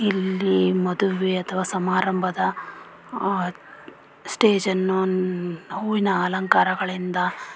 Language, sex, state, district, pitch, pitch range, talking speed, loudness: Kannada, female, Karnataka, Shimoga, 185 Hz, 185-190 Hz, 65 wpm, -22 LUFS